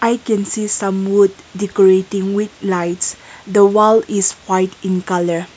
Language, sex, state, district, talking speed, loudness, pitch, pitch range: English, female, Nagaland, Kohima, 150 wpm, -16 LUFS, 195 Hz, 185-210 Hz